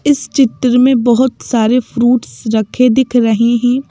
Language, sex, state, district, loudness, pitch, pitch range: Hindi, female, Madhya Pradesh, Bhopal, -12 LUFS, 245 Hz, 235-260 Hz